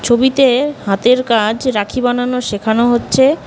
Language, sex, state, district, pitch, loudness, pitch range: Bengali, female, West Bengal, Cooch Behar, 245 Hz, -14 LUFS, 225-260 Hz